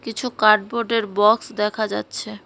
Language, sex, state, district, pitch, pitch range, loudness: Bengali, female, West Bengal, Cooch Behar, 215 Hz, 210-230 Hz, -20 LUFS